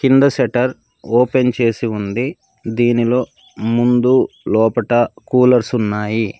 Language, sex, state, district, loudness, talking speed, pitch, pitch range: Telugu, male, Telangana, Mahabubabad, -16 LUFS, 95 wpm, 120 Hz, 115-125 Hz